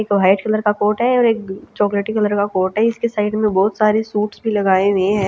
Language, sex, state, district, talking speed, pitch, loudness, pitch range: Hindi, female, Chhattisgarh, Raipur, 260 wpm, 210 Hz, -17 LUFS, 200-215 Hz